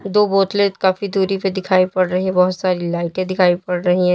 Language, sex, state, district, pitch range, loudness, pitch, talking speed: Hindi, female, Uttar Pradesh, Lalitpur, 180-195 Hz, -17 LUFS, 185 Hz, 230 wpm